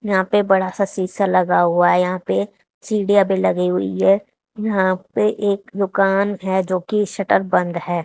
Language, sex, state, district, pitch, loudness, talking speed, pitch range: Hindi, female, Haryana, Charkhi Dadri, 190 Hz, -18 LUFS, 185 wpm, 180-200 Hz